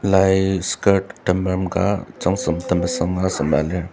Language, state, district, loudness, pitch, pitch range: Ao, Nagaland, Dimapur, -20 LUFS, 95 Hz, 90-95 Hz